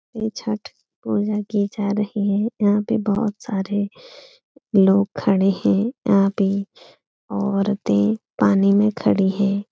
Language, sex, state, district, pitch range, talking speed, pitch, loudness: Hindi, female, Bihar, Supaul, 195-215 Hz, 130 wpm, 205 Hz, -20 LUFS